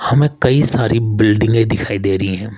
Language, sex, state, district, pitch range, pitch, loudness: Hindi, male, Rajasthan, Jaipur, 105-120 Hz, 110 Hz, -14 LUFS